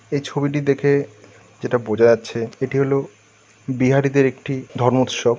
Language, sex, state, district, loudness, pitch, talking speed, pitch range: Bengali, male, West Bengal, North 24 Parganas, -19 LUFS, 130 Hz, 135 wpm, 115-140 Hz